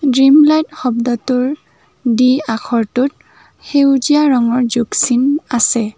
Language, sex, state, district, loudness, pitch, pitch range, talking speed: Assamese, female, Assam, Kamrup Metropolitan, -14 LUFS, 255 Hz, 240-285 Hz, 90 wpm